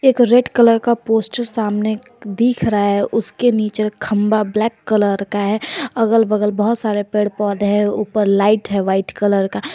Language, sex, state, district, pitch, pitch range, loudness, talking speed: Hindi, female, Jharkhand, Garhwa, 215 Hz, 205-230 Hz, -17 LUFS, 180 wpm